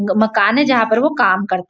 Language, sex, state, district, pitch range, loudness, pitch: Hindi, female, Maharashtra, Nagpur, 190-245 Hz, -14 LUFS, 220 Hz